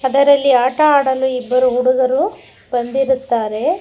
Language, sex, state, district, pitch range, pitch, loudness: Kannada, female, Karnataka, Bangalore, 250-275 Hz, 260 Hz, -15 LUFS